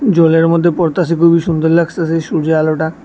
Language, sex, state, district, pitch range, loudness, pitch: Bengali, male, Tripura, West Tripura, 160-170 Hz, -13 LUFS, 165 Hz